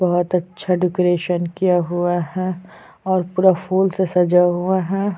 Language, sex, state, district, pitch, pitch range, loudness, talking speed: Hindi, female, Chhattisgarh, Sukma, 180 Hz, 175-185 Hz, -18 LUFS, 150 wpm